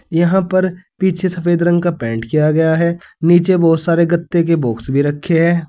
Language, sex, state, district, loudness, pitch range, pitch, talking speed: Hindi, male, Uttar Pradesh, Saharanpur, -15 LUFS, 160-175 Hz, 170 Hz, 200 wpm